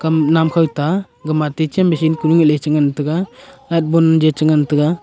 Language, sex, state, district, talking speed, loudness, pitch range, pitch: Wancho, male, Arunachal Pradesh, Longding, 180 wpm, -15 LUFS, 150-165 Hz, 160 Hz